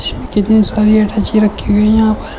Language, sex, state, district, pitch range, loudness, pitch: Hindi, female, Uttar Pradesh, Shamli, 210-215 Hz, -12 LUFS, 215 Hz